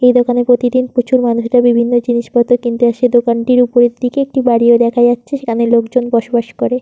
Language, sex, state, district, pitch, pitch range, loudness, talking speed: Bengali, female, West Bengal, Purulia, 240 Hz, 235-250 Hz, -12 LUFS, 195 wpm